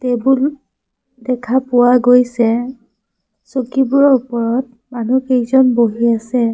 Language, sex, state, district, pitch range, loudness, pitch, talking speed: Assamese, female, Assam, Sonitpur, 235-260 Hz, -14 LUFS, 245 Hz, 90 wpm